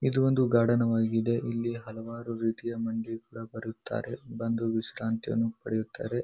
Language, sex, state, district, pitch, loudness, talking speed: Kannada, male, Karnataka, Bijapur, 115 Hz, -30 LUFS, 125 wpm